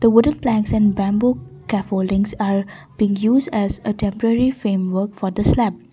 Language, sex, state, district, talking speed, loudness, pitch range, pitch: English, female, Assam, Kamrup Metropolitan, 160 wpm, -19 LUFS, 195-230 Hz, 205 Hz